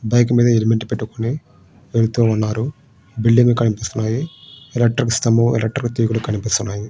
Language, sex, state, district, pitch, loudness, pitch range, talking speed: Telugu, male, Andhra Pradesh, Srikakulam, 115 Hz, -18 LUFS, 110-120 Hz, 120 wpm